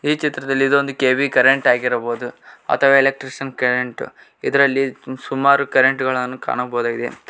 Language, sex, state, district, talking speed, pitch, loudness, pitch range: Kannada, male, Karnataka, Koppal, 125 wpm, 130 Hz, -17 LUFS, 125-135 Hz